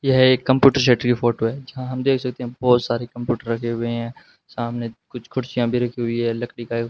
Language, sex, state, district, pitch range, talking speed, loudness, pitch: Hindi, male, Rajasthan, Bikaner, 115-130 Hz, 245 wpm, -21 LUFS, 120 Hz